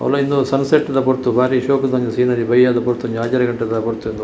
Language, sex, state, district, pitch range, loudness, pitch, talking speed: Tulu, male, Karnataka, Dakshina Kannada, 120-135 Hz, -17 LUFS, 125 Hz, 225 wpm